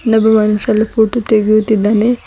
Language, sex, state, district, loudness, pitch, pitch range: Kannada, female, Karnataka, Bidar, -12 LUFS, 220 Hz, 215-225 Hz